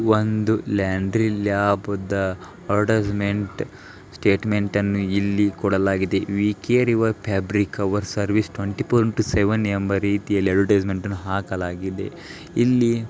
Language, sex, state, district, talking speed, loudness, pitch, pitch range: Kannada, male, Karnataka, Dharwad, 105 wpm, -22 LUFS, 100 Hz, 100-105 Hz